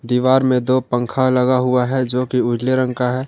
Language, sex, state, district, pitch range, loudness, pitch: Hindi, male, Jharkhand, Ranchi, 125-130 Hz, -17 LUFS, 125 Hz